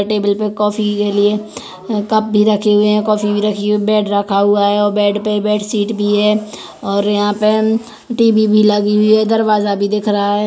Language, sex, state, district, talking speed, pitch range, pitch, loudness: Hindi, female, Chhattisgarh, Kabirdham, 185 wpm, 205-215 Hz, 210 Hz, -14 LUFS